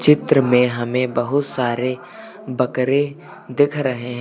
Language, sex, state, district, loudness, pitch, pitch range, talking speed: Hindi, male, Uttar Pradesh, Lucknow, -19 LUFS, 130 Hz, 125-145 Hz, 130 wpm